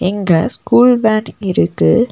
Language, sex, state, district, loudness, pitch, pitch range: Tamil, female, Tamil Nadu, Nilgiris, -13 LUFS, 200 Hz, 165-225 Hz